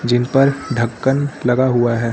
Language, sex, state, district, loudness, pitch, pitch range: Hindi, male, Uttar Pradesh, Lucknow, -17 LUFS, 125 Hz, 120-135 Hz